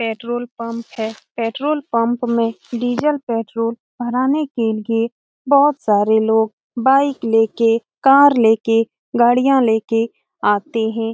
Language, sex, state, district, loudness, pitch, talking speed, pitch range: Hindi, female, Bihar, Lakhisarai, -17 LUFS, 230 Hz, 125 wpm, 225-255 Hz